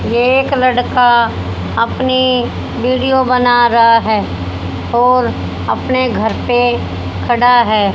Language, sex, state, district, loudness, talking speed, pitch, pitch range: Hindi, female, Haryana, Charkhi Dadri, -13 LUFS, 100 wpm, 240 Hz, 200-250 Hz